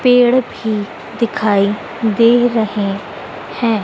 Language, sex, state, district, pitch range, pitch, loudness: Hindi, female, Madhya Pradesh, Dhar, 205-235 Hz, 220 Hz, -15 LUFS